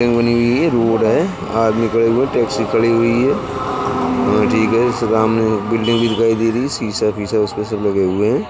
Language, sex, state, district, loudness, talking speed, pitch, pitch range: Hindi, male, Uttar Pradesh, Budaun, -16 LUFS, 205 wpm, 115 Hz, 110-115 Hz